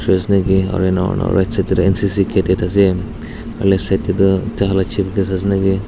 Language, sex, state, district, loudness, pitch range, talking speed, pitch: Nagamese, male, Nagaland, Dimapur, -16 LUFS, 95-100 Hz, 215 wpm, 95 Hz